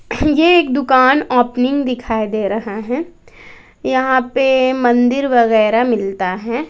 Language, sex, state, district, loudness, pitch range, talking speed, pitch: Hindi, female, Bihar, West Champaran, -15 LUFS, 230-265 Hz, 125 wpm, 250 Hz